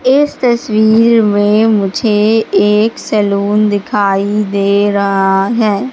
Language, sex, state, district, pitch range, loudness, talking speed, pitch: Hindi, female, Madhya Pradesh, Katni, 200-225 Hz, -11 LUFS, 100 wpm, 210 Hz